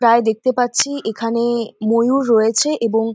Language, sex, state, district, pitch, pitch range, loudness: Bengali, female, West Bengal, North 24 Parganas, 230 Hz, 225-245 Hz, -17 LUFS